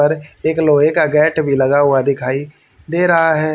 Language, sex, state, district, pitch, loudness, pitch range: Hindi, male, Haryana, Charkhi Dadri, 150 Hz, -14 LUFS, 140-160 Hz